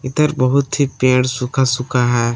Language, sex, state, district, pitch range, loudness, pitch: Hindi, male, Jharkhand, Palamu, 125-140 Hz, -16 LUFS, 130 Hz